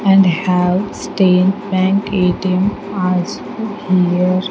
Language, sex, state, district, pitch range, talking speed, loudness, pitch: English, female, Andhra Pradesh, Sri Satya Sai, 180-200 Hz, 95 wpm, -16 LUFS, 185 Hz